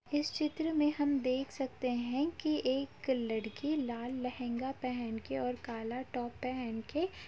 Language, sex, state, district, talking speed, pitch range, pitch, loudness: Hindi, female, Uttar Pradesh, Jalaun, 165 wpm, 240-290 Hz, 255 Hz, -36 LUFS